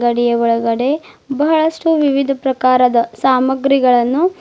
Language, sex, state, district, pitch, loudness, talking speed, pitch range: Kannada, female, Karnataka, Bidar, 265 Hz, -14 LUFS, 80 wpm, 240-290 Hz